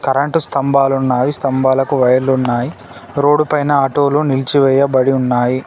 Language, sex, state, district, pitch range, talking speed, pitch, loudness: Telugu, male, Telangana, Komaram Bheem, 130-140 Hz, 95 wpm, 135 Hz, -14 LUFS